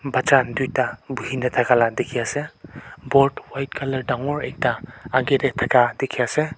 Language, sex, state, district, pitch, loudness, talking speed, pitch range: Nagamese, male, Nagaland, Kohima, 130 Hz, -21 LUFS, 145 wpm, 125-140 Hz